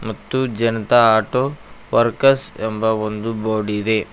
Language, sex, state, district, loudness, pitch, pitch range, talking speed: Kannada, male, Karnataka, Koppal, -18 LUFS, 110 Hz, 110-120 Hz, 100 wpm